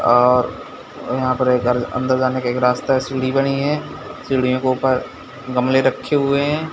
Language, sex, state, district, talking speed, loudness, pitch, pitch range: Hindi, male, Bihar, Gopalganj, 170 wpm, -18 LUFS, 130 Hz, 125-135 Hz